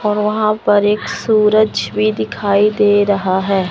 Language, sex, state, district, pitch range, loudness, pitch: Hindi, male, Chandigarh, Chandigarh, 190-210 Hz, -14 LUFS, 205 Hz